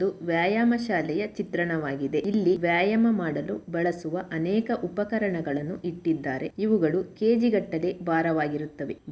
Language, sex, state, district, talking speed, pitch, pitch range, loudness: Kannada, female, Karnataka, Shimoga, 100 wpm, 175 Hz, 165-205 Hz, -26 LUFS